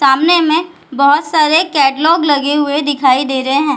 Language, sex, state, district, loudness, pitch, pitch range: Hindi, female, Bihar, Jahanabad, -12 LUFS, 290 Hz, 280-320 Hz